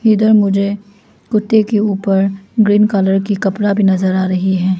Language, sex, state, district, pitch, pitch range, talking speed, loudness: Hindi, female, Arunachal Pradesh, Lower Dibang Valley, 200 Hz, 195-210 Hz, 175 wpm, -14 LUFS